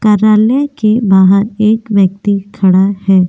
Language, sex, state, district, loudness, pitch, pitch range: Hindi, female, Goa, North and South Goa, -10 LUFS, 205 Hz, 195-215 Hz